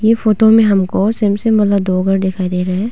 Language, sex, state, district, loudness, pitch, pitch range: Hindi, female, Arunachal Pradesh, Longding, -13 LUFS, 200 Hz, 190-220 Hz